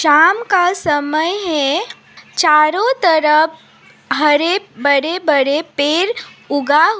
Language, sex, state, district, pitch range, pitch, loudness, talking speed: Hindi, female, Assam, Sonitpur, 295-360 Hz, 315 Hz, -14 LUFS, 105 wpm